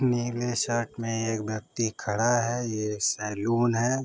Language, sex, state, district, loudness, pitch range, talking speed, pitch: Hindi, male, Uttar Pradesh, Varanasi, -27 LUFS, 110-120 Hz, 150 wpm, 115 Hz